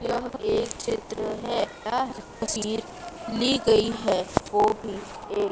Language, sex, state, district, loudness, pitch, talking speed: Hindi, female, Madhya Pradesh, Dhar, -26 LUFS, 240 Hz, 130 wpm